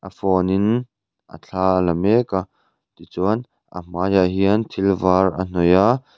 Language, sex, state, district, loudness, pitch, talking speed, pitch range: Mizo, male, Mizoram, Aizawl, -19 LUFS, 95 Hz, 185 wpm, 90-105 Hz